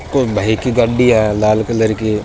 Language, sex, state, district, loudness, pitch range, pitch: Rajasthani, male, Rajasthan, Churu, -14 LUFS, 105-120 Hz, 110 Hz